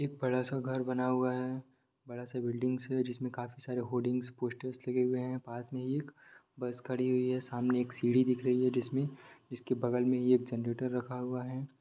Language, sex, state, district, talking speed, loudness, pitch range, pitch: Hindi, male, Bihar, Samastipur, 210 wpm, -34 LUFS, 125-130 Hz, 125 Hz